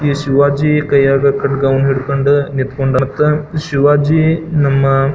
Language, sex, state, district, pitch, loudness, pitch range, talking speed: Kannada, male, Karnataka, Belgaum, 140 Hz, -13 LUFS, 135-150 Hz, 105 wpm